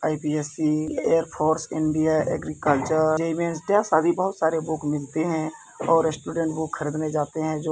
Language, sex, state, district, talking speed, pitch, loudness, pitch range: Hindi, male, Bihar, Purnia, 140 wpm, 155 Hz, -24 LUFS, 155-160 Hz